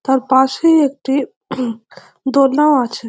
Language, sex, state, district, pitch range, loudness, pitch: Bengali, female, West Bengal, North 24 Parganas, 245-280 Hz, -15 LUFS, 265 Hz